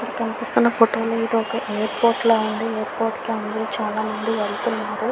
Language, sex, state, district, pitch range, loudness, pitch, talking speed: Telugu, female, Andhra Pradesh, Visakhapatnam, 215-230 Hz, -22 LUFS, 225 Hz, 165 wpm